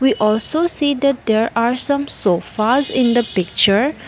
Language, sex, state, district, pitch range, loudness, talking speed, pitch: English, female, Assam, Kamrup Metropolitan, 215-280 Hz, -16 LUFS, 160 wpm, 240 Hz